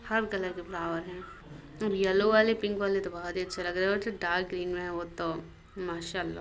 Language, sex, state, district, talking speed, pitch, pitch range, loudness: Hindi, female, Uttar Pradesh, Muzaffarnagar, 245 wpm, 180 Hz, 175-195 Hz, -31 LUFS